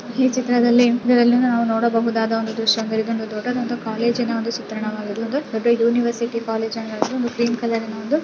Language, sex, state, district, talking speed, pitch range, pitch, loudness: Kannada, female, Karnataka, Raichur, 155 wpm, 225-240 Hz, 235 Hz, -20 LUFS